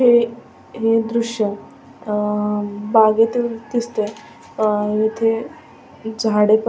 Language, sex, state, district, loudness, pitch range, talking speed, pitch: Marathi, female, Maharashtra, Sindhudurg, -19 LUFS, 210-230 Hz, 115 wpm, 220 Hz